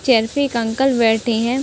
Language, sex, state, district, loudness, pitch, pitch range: Hindi, female, Uttar Pradesh, Ghazipur, -17 LUFS, 240 Hz, 225-265 Hz